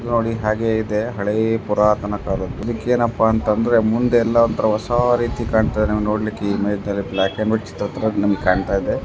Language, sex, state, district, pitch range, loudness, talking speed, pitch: Kannada, male, Karnataka, Dharwad, 105-115 Hz, -19 LUFS, 200 wpm, 110 Hz